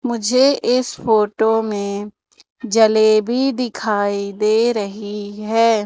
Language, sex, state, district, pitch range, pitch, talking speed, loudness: Hindi, female, Madhya Pradesh, Umaria, 210-235 Hz, 220 Hz, 90 wpm, -17 LUFS